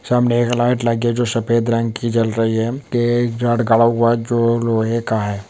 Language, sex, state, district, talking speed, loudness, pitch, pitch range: Hindi, male, West Bengal, Dakshin Dinajpur, 220 wpm, -17 LUFS, 115 Hz, 115-120 Hz